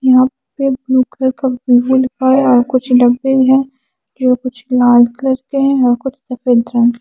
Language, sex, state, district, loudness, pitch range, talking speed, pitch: Hindi, female, Himachal Pradesh, Shimla, -13 LUFS, 245-265 Hz, 190 wpm, 255 Hz